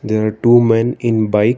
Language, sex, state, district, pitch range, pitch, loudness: English, male, Karnataka, Bangalore, 110-120 Hz, 115 Hz, -14 LUFS